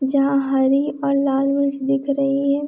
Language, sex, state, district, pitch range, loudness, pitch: Hindi, female, Uttar Pradesh, Etah, 275-280 Hz, -19 LUFS, 275 Hz